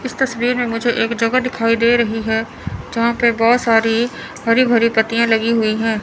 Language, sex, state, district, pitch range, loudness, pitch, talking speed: Hindi, female, Chandigarh, Chandigarh, 225-240 Hz, -16 LUFS, 230 Hz, 200 wpm